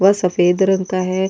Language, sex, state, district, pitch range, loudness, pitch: Hindi, female, Goa, North and South Goa, 185-190 Hz, -16 LUFS, 185 Hz